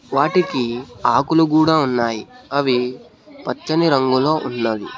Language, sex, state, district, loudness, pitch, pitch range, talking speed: Telugu, male, Telangana, Hyderabad, -18 LUFS, 130 Hz, 120-155 Hz, 95 wpm